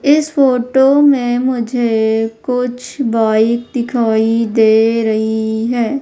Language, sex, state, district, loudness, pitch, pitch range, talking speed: Hindi, female, Madhya Pradesh, Umaria, -14 LUFS, 235 Hz, 225-255 Hz, 100 wpm